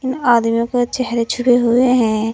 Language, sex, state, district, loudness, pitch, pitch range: Hindi, female, Uttar Pradesh, Saharanpur, -15 LUFS, 240 Hz, 230-250 Hz